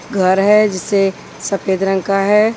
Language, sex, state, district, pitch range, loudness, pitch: Hindi, female, Chhattisgarh, Raipur, 190-205 Hz, -15 LUFS, 195 Hz